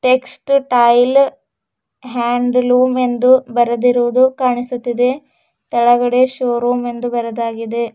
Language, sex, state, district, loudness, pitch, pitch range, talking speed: Kannada, female, Karnataka, Bidar, -15 LUFS, 245 Hz, 240-255 Hz, 85 wpm